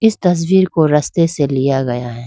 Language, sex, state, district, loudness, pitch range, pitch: Hindi, female, Arunachal Pradesh, Lower Dibang Valley, -15 LUFS, 135-180 Hz, 155 Hz